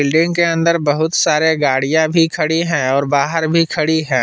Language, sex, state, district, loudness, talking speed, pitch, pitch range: Hindi, male, Jharkhand, Palamu, -15 LUFS, 200 wpm, 160 Hz, 145-165 Hz